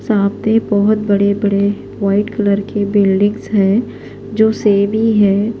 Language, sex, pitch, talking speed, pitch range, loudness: Urdu, female, 205 Hz, 140 wpm, 200-215 Hz, -14 LUFS